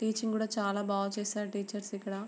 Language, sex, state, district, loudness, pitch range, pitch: Telugu, female, Andhra Pradesh, Srikakulam, -34 LUFS, 200-215 Hz, 205 Hz